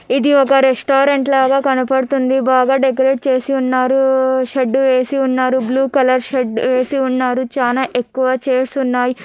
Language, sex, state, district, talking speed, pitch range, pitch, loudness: Telugu, female, Andhra Pradesh, Anantapur, 135 wpm, 255-270 Hz, 260 Hz, -15 LUFS